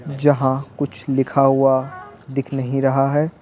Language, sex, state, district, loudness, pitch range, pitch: Hindi, male, Bihar, Patna, -19 LUFS, 130-140 Hz, 135 Hz